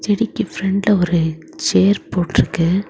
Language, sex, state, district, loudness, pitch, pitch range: Tamil, female, Tamil Nadu, Kanyakumari, -17 LUFS, 190 Hz, 170-205 Hz